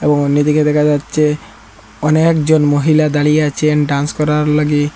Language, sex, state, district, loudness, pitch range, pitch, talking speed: Bengali, male, Assam, Hailakandi, -13 LUFS, 145-150 Hz, 150 Hz, 135 wpm